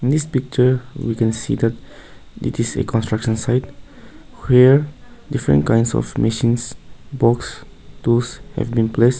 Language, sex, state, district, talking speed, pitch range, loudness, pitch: English, male, Nagaland, Kohima, 135 wpm, 115-130 Hz, -18 LUFS, 120 Hz